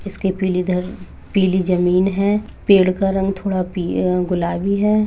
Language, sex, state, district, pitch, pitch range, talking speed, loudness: Hindi, female, Uttar Pradesh, Budaun, 190 Hz, 180-195 Hz, 165 wpm, -18 LUFS